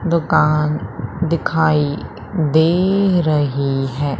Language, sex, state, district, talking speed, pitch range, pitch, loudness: Hindi, female, Madhya Pradesh, Umaria, 70 wpm, 135-165 Hz, 150 Hz, -17 LUFS